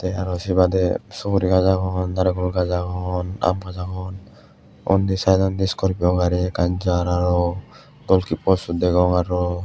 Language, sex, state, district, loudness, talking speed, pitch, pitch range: Chakma, male, Tripura, West Tripura, -21 LUFS, 150 wpm, 90 Hz, 90-95 Hz